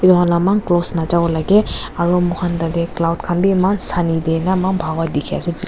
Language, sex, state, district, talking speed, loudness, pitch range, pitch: Nagamese, female, Nagaland, Dimapur, 180 wpm, -17 LUFS, 165-185 Hz, 175 Hz